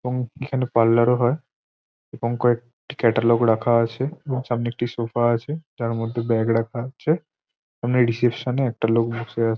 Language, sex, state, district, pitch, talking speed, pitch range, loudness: Bengali, male, West Bengal, Jhargram, 120 Hz, 170 wpm, 115-125 Hz, -22 LUFS